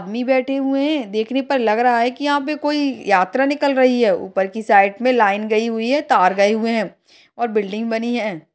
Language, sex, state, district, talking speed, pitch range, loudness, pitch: Hindi, female, Maharashtra, Solapur, 230 wpm, 215-270 Hz, -18 LUFS, 235 Hz